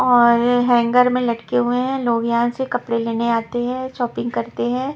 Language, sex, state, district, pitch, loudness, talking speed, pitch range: Hindi, female, Punjab, Pathankot, 240 Hz, -19 LUFS, 195 wpm, 235-250 Hz